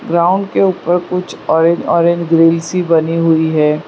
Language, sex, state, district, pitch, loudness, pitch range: Hindi, female, Gujarat, Valsad, 170 Hz, -13 LUFS, 165-175 Hz